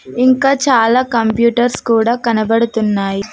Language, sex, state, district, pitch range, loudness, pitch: Telugu, female, Telangana, Mahabubabad, 225-245 Hz, -13 LUFS, 235 Hz